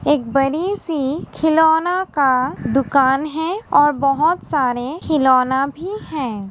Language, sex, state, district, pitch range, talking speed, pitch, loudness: Hindi, female, Uttar Pradesh, Muzaffarnagar, 265-320 Hz, 110 wpm, 290 Hz, -18 LUFS